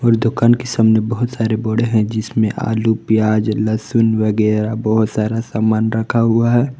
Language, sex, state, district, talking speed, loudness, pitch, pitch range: Hindi, male, Jharkhand, Palamu, 175 wpm, -16 LUFS, 110 Hz, 110-115 Hz